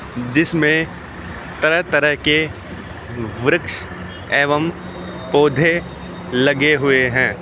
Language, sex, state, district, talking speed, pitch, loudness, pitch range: Hindi, male, Rajasthan, Jaipur, 75 wpm, 130 Hz, -17 LUFS, 95-150 Hz